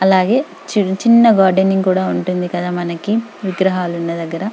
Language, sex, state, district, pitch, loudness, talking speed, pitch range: Telugu, female, Telangana, Karimnagar, 190 Hz, -15 LUFS, 135 wpm, 180-205 Hz